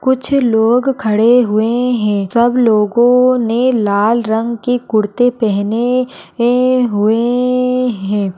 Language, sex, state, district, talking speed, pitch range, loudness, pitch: Hindi, female, Bihar, Gaya, 110 wpm, 215-250 Hz, -13 LUFS, 235 Hz